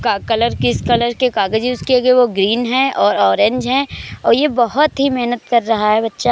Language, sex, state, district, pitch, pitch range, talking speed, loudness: Hindi, female, Uttar Pradesh, Gorakhpur, 240 Hz, 210-255 Hz, 230 wpm, -15 LUFS